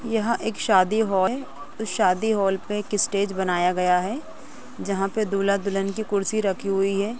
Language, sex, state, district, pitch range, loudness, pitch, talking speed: Hindi, female, Chhattisgarh, Rajnandgaon, 195-220 Hz, -23 LUFS, 200 Hz, 190 wpm